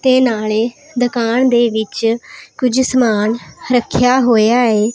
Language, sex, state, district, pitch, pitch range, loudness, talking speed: Punjabi, female, Punjab, Pathankot, 240 Hz, 225-255 Hz, -15 LUFS, 120 wpm